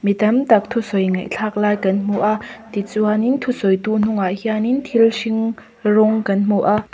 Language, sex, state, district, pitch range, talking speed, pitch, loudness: Mizo, female, Mizoram, Aizawl, 205-225 Hz, 175 wpm, 215 Hz, -18 LUFS